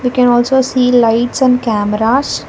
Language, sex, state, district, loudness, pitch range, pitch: English, female, Karnataka, Bangalore, -12 LUFS, 230-255 Hz, 250 Hz